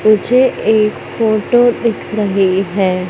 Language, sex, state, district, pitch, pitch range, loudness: Hindi, male, Madhya Pradesh, Katni, 215 Hz, 195-230 Hz, -14 LUFS